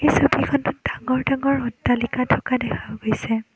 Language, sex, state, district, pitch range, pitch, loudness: Assamese, female, Assam, Kamrup Metropolitan, 225-255 Hz, 245 Hz, -22 LUFS